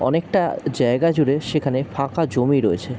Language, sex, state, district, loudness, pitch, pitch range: Bengali, male, West Bengal, Jalpaiguri, -20 LUFS, 140 Hz, 130-160 Hz